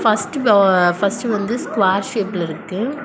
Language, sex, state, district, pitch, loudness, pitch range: Tamil, female, Tamil Nadu, Kanyakumari, 205 Hz, -18 LUFS, 190-235 Hz